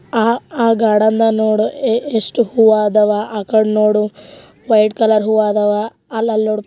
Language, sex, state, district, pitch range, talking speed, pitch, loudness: Kannada, female, Karnataka, Gulbarga, 210-225 Hz, 155 wpm, 215 Hz, -15 LUFS